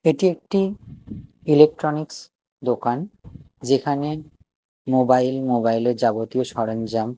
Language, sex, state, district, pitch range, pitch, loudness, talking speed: Bengali, male, Odisha, Nuapada, 120-150 Hz, 130 Hz, -21 LUFS, 90 wpm